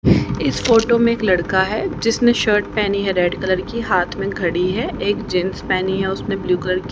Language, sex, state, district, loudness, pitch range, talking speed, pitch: Hindi, female, Haryana, Jhajjar, -18 LUFS, 185-215 Hz, 215 wpm, 195 Hz